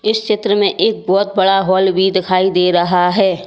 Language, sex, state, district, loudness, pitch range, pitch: Hindi, female, Uttar Pradesh, Lalitpur, -14 LUFS, 185-205 Hz, 190 Hz